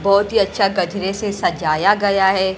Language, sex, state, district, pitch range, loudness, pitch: Hindi, female, Maharashtra, Mumbai Suburban, 190-200 Hz, -17 LUFS, 195 Hz